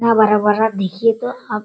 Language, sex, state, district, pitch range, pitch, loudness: Hindi, male, Bihar, Sitamarhi, 210-230 Hz, 215 Hz, -16 LUFS